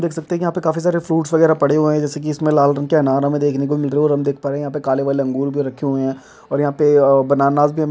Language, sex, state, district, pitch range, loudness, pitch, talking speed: Hindi, male, Chhattisgarh, Sukma, 140-155 Hz, -17 LUFS, 145 Hz, 335 wpm